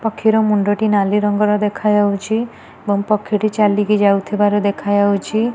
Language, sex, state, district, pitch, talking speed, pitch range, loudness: Odia, female, Odisha, Nuapada, 210 Hz, 130 wpm, 205-215 Hz, -16 LUFS